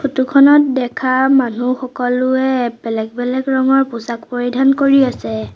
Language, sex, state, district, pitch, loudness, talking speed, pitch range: Assamese, female, Assam, Sonitpur, 255 Hz, -15 LUFS, 130 wpm, 245-270 Hz